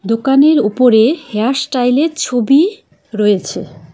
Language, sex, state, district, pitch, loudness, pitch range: Bengali, female, West Bengal, Cooch Behar, 245 Hz, -13 LUFS, 215-275 Hz